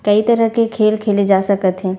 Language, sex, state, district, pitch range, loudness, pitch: Chhattisgarhi, female, Chhattisgarh, Raigarh, 195-225 Hz, -15 LUFS, 205 Hz